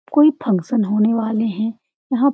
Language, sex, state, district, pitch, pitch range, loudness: Hindi, female, Bihar, Supaul, 225 Hz, 220-265 Hz, -18 LUFS